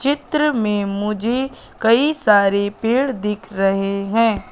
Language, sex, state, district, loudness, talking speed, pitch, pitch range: Hindi, female, Madhya Pradesh, Katni, -18 LUFS, 120 wpm, 215 Hz, 200-260 Hz